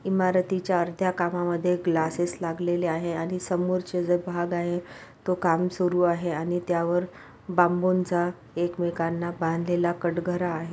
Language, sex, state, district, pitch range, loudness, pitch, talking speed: Marathi, female, Maharashtra, Pune, 170-180 Hz, -26 LUFS, 175 Hz, 125 wpm